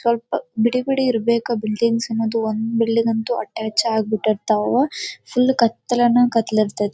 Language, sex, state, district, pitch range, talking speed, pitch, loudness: Kannada, female, Karnataka, Dharwad, 220-240 Hz, 165 wpm, 230 Hz, -19 LUFS